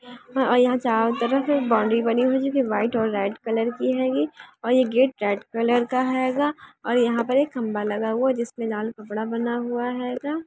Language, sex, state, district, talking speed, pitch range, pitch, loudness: Hindi, female, Karnataka, Mysore, 210 wpm, 225-255 Hz, 235 Hz, -23 LUFS